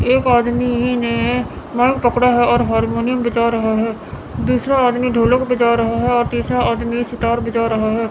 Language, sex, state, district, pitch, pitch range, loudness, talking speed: Hindi, female, Chandigarh, Chandigarh, 235 Hz, 225-245 Hz, -16 LUFS, 175 wpm